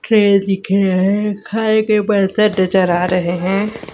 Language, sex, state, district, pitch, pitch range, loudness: Hindi, female, Chhattisgarh, Raipur, 195 Hz, 190-210 Hz, -15 LUFS